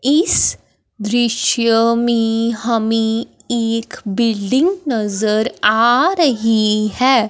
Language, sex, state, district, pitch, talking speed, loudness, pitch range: Hindi, male, Punjab, Fazilka, 230 Hz, 80 wpm, -16 LUFS, 220-245 Hz